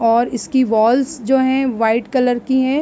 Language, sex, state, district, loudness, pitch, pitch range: Hindi, female, Bihar, East Champaran, -16 LUFS, 250 Hz, 230-265 Hz